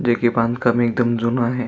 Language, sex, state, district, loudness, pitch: Marathi, male, Maharashtra, Aurangabad, -19 LUFS, 120 Hz